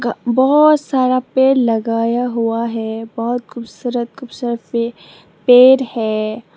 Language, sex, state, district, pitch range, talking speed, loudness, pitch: Hindi, female, Tripura, Dhalai, 230-255 Hz, 110 wpm, -15 LUFS, 235 Hz